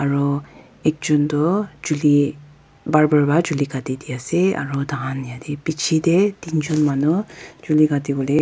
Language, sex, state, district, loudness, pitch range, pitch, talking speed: Nagamese, female, Nagaland, Dimapur, -20 LUFS, 140-160 Hz, 150 Hz, 130 wpm